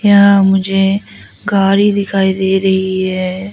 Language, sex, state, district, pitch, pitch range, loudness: Hindi, female, Arunachal Pradesh, Lower Dibang Valley, 195 Hz, 190-200 Hz, -12 LUFS